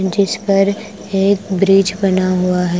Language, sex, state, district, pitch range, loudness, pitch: Hindi, female, Punjab, Kapurthala, 185-200 Hz, -15 LUFS, 195 Hz